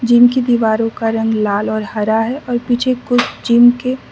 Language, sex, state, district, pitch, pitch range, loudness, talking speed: Hindi, female, Mizoram, Aizawl, 240 Hz, 220-245 Hz, -15 LUFS, 205 wpm